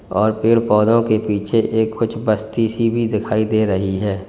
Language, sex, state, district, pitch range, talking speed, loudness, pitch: Hindi, male, Uttar Pradesh, Lalitpur, 105-115 Hz, 195 wpm, -18 LUFS, 110 Hz